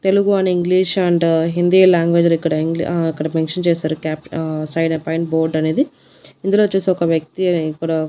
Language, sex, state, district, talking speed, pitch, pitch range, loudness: Telugu, female, Andhra Pradesh, Annamaya, 170 wpm, 165 Hz, 160-180 Hz, -17 LUFS